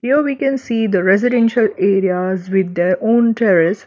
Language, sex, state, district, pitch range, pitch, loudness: English, female, Gujarat, Valsad, 185-235 Hz, 205 Hz, -15 LUFS